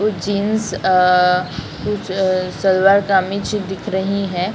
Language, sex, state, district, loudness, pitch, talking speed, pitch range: Hindi, female, Bihar, Samastipur, -17 LUFS, 190 Hz, 120 wpm, 185-200 Hz